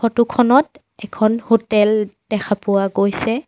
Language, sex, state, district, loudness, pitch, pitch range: Assamese, female, Assam, Sonitpur, -17 LUFS, 215 Hz, 205-235 Hz